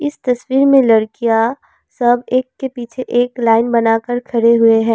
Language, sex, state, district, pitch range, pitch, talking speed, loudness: Hindi, female, Assam, Kamrup Metropolitan, 230-255 Hz, 240 Hz, 180 wpm, -14 LUFS